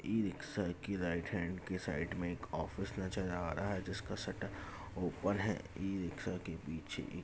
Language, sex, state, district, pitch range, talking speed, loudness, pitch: Hindi, male, Bihar, Jamui, 90-100 Hz, 175 wpm, -40 LUFS, 95 Hz